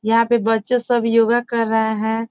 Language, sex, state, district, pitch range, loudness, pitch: Hindi, female, Bihar, Gopalganj, 225-235 Hz, -18 LUFS, 230 Hz